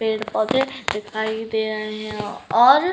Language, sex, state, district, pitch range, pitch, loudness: Hindi, female, Uttarakhand, Uttarkashi, 215-250 Hz, 220 Hz, -21 LUFS